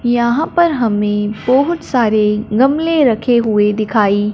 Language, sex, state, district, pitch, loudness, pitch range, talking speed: Hindi, male, Punjab, Fazilka, 235 Hz, -14 LUFS, 210-265 Hz, 125 wpm